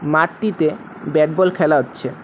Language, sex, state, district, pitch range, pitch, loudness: Bengali, male, West Bengal, Alipurduar, 155-200 Hz, 160 Hz, -18 LUFS